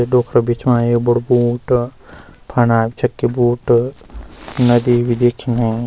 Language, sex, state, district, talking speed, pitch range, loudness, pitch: Garhwali, male, Uttarakhand, Uttarkashi, 125 wpm, 120-125 Hz, -16 LUFS, 120 Hz